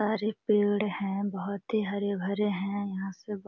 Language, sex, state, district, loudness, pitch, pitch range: Hindi, female, Bihar, Jamui, -30 LUFS, 200 Hz, 195-210 Hz